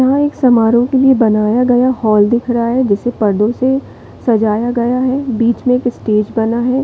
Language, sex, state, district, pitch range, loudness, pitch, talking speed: Hindi, female, Chhattisgarh, Bilaspur, 225-255 Hz, -13 LUFS, 240 Hz, 200 wpm